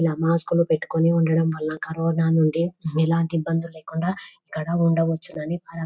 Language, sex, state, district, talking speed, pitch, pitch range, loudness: Telugu, female, Telangana, Nalgonda, 145 wpm, 165 Hz, 160-165 Hz, -23 LUFS